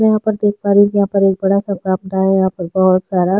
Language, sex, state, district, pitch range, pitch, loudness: Hindi, female, Chhattisgarh, Sukma, 190-200 Hz, 195 Hz, -15 LUFS